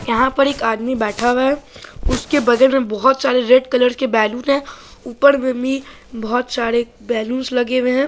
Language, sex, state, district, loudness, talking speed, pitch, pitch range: Hindi, female, Bihar, Saharsa, -17 LUFS, 195 wpm, 255 Hz, 240-270 Hz